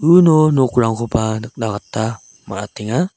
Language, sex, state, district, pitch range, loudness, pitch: Garo, male, Meghalaya, South Garo Hills, 110-150 Hz, -17 LUFS, 115 Hz